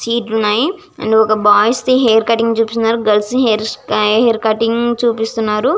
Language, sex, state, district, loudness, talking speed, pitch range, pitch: Telugu, female, Andhra Pradesh, Visakhapatnam, -14 LUFS, 115 wpm, 220-235 Hz, 225 Hz